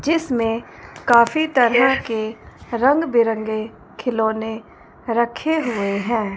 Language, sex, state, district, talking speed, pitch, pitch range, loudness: Hindi, female, Punjab, Fazilka, 95 wpm, 235 Hz, 220-255 Hz, -19 LUFS